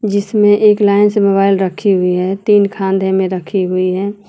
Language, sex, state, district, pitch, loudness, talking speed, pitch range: Hindi, female, Uttar Pradesh, Lucknow, 195 Hz, -13 LUFS, 195 wpm, 190-205 Hz